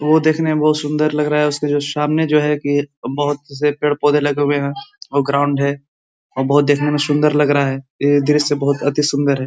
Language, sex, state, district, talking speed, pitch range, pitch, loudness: Hindi, male, Uttar Pradesh, Ghazipur, 235 wpm, 145-150 Hz, 145 Hz, -17 LUFS